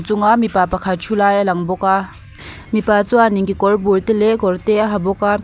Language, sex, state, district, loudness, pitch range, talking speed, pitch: Mizo, female, Mizoram, Aizawl, -15 LUFS, 190-215 Hz, 230 wpm, 205 Hz